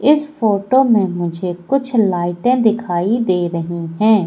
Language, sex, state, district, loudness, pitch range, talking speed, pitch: Hindi, female, Madhya Pradesh, Katni, -16 LUFS, 175-240 Hz, 140 wpm, 210 Hz